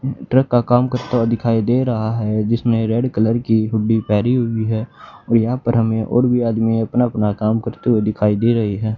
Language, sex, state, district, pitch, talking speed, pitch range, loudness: Hindi, male, Haryana, Charkhi Dadri, 115 Hz, 220 wpm, 110-120 Hz, -17 LUFS